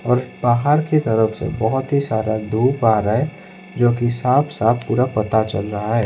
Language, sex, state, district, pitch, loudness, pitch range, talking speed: Hindi, male, Odisha, Khordha, 120 Hz, -18 LUFS, 110-140 Hz, 210 wpm